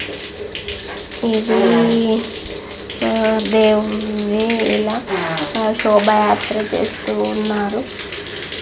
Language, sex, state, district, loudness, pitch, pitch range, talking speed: Telugu, female, Andhra Pradesh, Visakhapatnam, -17 LUFS, 215 Hz, 210-225 Hz, 50 wpm